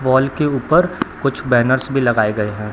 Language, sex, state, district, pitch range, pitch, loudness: Hindi, male, Bihar, Samastipur, 120-140 Hz, 130 Hz, -17 LUFS